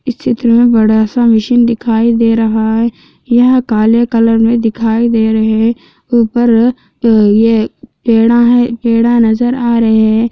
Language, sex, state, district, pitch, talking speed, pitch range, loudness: Hindi, female, Andhra Pradesh, Anantapur, 230 Hz, 155 wpm, 225-240 Hz, -10 LUFS